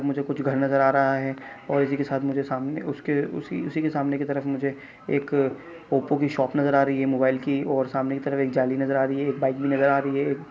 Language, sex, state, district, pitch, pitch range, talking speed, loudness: Hindi, male, Chhattisgarh, Kabirdham, 140 Hz, 135-140 Hz, 270 wpm, -24 LUFS